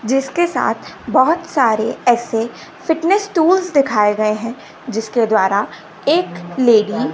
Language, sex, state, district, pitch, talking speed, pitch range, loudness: Hindi, female, Gujarat, Gandhinagar, 240 Hz, 125 wpm, 220-320 Hz, -16 LUFS